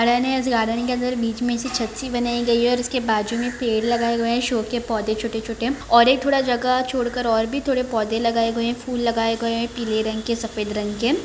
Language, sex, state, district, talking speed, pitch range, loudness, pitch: Hindi, female, Bihar, Begusarai, 250 wpm, 225-245 Hz, -21 LUFS, 235 Hz